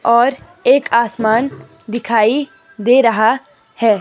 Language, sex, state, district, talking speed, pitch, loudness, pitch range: Hindi, female, Himachal Pradesh, Shimla, 105 wpm, 235 Hz, -15 LUFS, 220-260 Hz